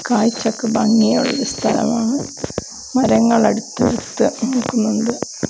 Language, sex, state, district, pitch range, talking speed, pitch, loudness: Malayalam, female, Kerala, Kozhikode, 225-250 Hz, 85 wpm, 235 Hz, -17 LUFS